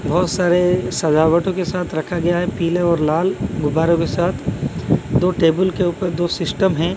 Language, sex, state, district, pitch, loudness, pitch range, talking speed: Hindi, male, Odisha, Malkangiri, 175 Hz, -18 LUFS, 165-180 Hz, 180 wpm